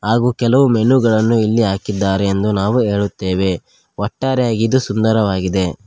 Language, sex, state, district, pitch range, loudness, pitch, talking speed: Kannada, male, Karnataka, Koppal, 100-120 Hz, -16 LUFS, 110 Hz, 120 wpm